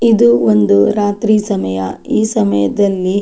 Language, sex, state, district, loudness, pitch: Kannada, female, Karnataka, Dakshina Kannada, -13 LUFS, 195 Hz